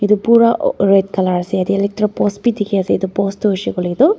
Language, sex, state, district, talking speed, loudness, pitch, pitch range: Nagamese, female, Nagaland, Dimapur, 255 wpm, -15 LUFS, 200 Hz, 190-210 Hz